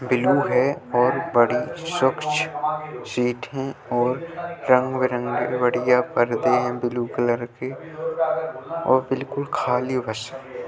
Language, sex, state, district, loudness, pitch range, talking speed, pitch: Hindi, female, Bihar, Vaishali, -23 LUFS, 125-150 Hz, 110 wpm, 130 Hz